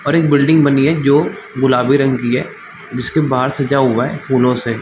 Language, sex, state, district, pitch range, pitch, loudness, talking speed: Hindi, male, Chhattisgarh, Balrampur, 125-145 Hz, 135 Hz, -14 LUFS, 225 wpm